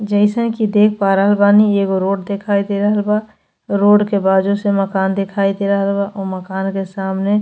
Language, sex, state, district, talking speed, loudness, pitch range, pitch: Bhojpuri, female, Uttar Pradesh, Ghazipur, 210 wpm, -16 LUFS, 195-205 Hz, 200 Hz